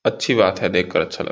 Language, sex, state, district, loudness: Hindi, male, Uttar Pradesh, Gorakhpur, -19 LUFS